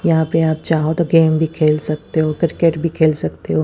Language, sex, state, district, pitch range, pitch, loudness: Hindi, female, Chandigarh, Chandigarh, 155-165 Hz, 160 Hz, -16 LUFS